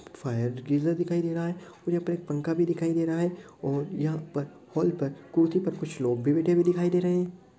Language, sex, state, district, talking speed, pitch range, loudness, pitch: Hindi, male, Uttar Pradesh, Deoria, 230 wpm, 145-175 Hz, -28 LUFS, 165 Hz